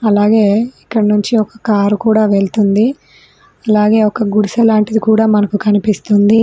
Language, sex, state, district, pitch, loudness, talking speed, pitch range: Telugu, female, Telangana, Mahabubabad, 215 Hz, -12 LUFS, 130 wpm, 205-220 Hz